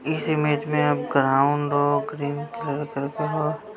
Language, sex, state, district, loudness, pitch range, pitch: Hindi, male, Bihar, Saharsa, -23 LUFS, 145-150 Hz, 145 Hz